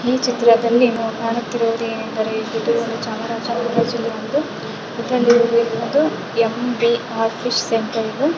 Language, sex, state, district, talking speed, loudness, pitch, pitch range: Kannada, female, Karnataka, Chamarajanagar, 85 wpm, -19 LUFS, 230 Hz, 225-240 Hz